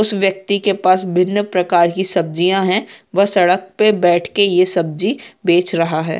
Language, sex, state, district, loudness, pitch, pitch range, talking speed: Hindi, female, Bihar, Samastipur, -15 LUFS, 185 Hz, 175-200 Hz, 195 wpm